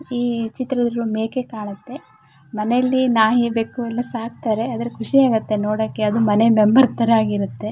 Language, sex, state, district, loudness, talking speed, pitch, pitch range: Kannada, female, Karnataka, Shimoga, -19 LUFS, 140 wpm, 230 Hz, 215-245 Hz